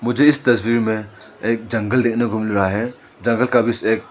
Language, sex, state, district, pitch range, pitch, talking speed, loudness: Hindi, male, Arunachal Pradesh, Lower Dibang Valley, 110-120 Hz, 115 Hz, 205 wpm, -19 LUFS